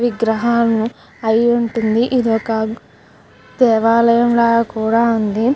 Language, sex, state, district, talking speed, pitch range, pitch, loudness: Telugu, female, Andhra Pradesh, Krishna, 85 wpm, 225-235 Hz, 230 Hz, -15 LUFS